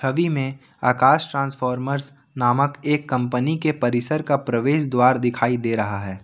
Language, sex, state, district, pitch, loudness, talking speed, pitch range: Hindi, male, Jharkhand, Ranchi, 130 Hz, -21 LUFS, 155 wpm, 125-140 Hz